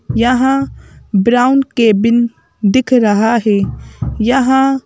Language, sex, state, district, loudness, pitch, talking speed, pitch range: Hindi, female, Madhya Pradesh, Bhopal, -13 LUFS, 240 Hz, 85 wpm, 225-260 Hz